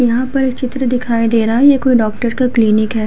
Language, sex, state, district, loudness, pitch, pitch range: Hindi, female, Uttar Pradesh, Hamirpur, -14 LUFS, 245 Hz, 225-255 Hz